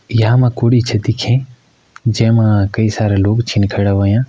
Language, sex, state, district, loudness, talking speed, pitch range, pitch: Kumaoni, male, Uttarakhand, Uttarkashi, -14 LUFS, 170 wpm, 105-120 Hz, 115 Hz